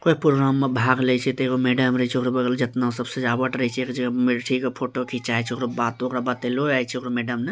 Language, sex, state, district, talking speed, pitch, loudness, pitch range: Maithili, male, Bihar, Bhagalpur, 130 wpm, 125 Hz, -23 LUFS, 125-130 Hz